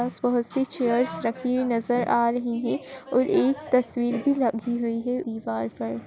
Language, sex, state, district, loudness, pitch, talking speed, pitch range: Hindi, female, Uttar Pradesh, Etah, -25 LUFS, 240 Hz, 195 wpm, 230-250 Hz